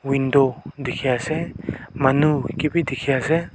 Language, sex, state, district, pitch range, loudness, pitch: Nagamese, male, Nagaland, Kohima, 130-155 Hz, -21 LUFS, 140 Hz